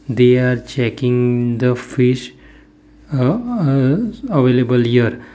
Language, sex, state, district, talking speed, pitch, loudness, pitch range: English, male, Gujarat, Valsad, 100 wpm, 125 Hz, -16 LUFS, 125-130 Hz